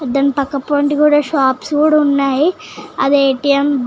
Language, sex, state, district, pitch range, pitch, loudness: Telugu, female, Telangana, Nalgonda, 275-295 Hz, 280 Hz, -14 LUFS